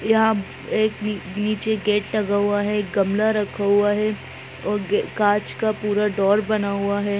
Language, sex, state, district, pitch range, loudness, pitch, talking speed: Hindi, female, Bihar, Gaya, 200-215 Hz, -21 LUFS, 205 Hz, 175 wpm